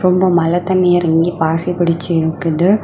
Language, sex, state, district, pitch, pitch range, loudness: Tamil, female, Tamil Nadu, Kanyakumari, 175 Hz, 165-180 Hz, -14 LUFS